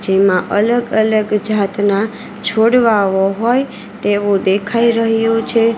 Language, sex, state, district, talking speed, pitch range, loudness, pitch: Gujarati, female, Gujarat, Valsad, 105 wpm, 200-230 Hz, -14 LUFS, 215 Hz